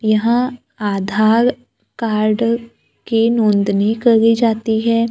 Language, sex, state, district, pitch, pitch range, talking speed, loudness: Hindi, female, Maharashtra, Gondia, 225 Hz, 215-230 Hz, 95 wpm, -16 LUFS